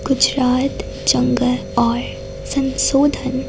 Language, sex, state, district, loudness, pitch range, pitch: Hindi, female, Gujarat, Gandhinagar, -18 LUFS, 250-275 Hz, 265 Hz